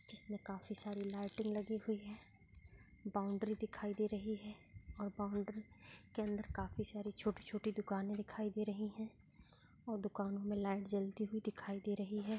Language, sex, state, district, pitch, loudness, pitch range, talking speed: Hindi, female, Bihar, Saharsa, 210 Hz, -43 LUFS, 200-215 Hz, 165 wpm